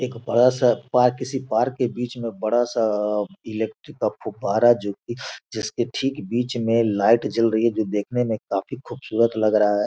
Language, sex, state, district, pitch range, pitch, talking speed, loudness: Hindi, male, Bihar, Gopalganj, 110-125 Hz, 115 Hz, 180 wpm, -22 LUFS